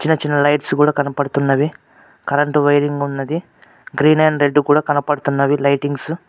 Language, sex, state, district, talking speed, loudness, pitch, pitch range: Telugu, male, Telangana, Mahabubabad, 145 wpm, -16 LUFS, 145 Hz, 140-150 Hz